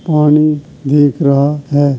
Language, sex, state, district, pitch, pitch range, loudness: Hindi, male, Uttar Pradesh, Hamirpur, 145 Hz, 140-150 Hz, -12 LUFS